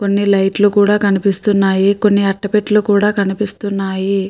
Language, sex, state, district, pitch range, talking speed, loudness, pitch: Telugu, female, Andhra Pradesh, Guntur, 195-205 Hz, 140 wpm, -14 LUFS, 200 Hz